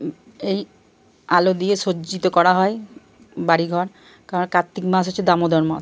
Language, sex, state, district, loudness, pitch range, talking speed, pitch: Bengali, male, Jharkhand, Jamtara, -20 LUFS, 175-185 Hz, 135 wpm, 185 Hz